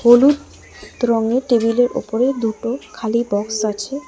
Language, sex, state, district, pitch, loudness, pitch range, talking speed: Bengali, female, West Bengal, Alipurduar, 235 Hz, -18 LUFS, 225-255 Hz, 130 wpm